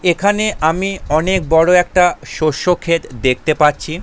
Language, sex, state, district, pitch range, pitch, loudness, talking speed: Bengali, male, West Bengal, Jalpaiguri, 155-185 Hz, 170 Hz, -15 LUFS, 150 wpm